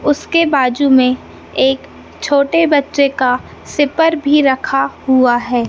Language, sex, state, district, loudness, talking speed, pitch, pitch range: Hindi, male, Madhya Pradesh, Katni, -14 LUFS, 125 wpm, 275 Hz, 255-290 Hz